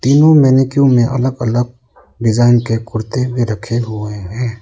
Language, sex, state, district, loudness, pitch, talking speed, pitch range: Hindi, male, Arunachal Pradesh, Lower Dibang Valley, -14 LUFS, 120 Hz, 155 wpm, 115-130 Hz